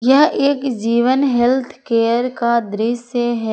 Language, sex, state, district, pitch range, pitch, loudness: Hindi, female, Jharkhand, Ranchi, 235-260 Hz, 240 Hz, -17 LUFS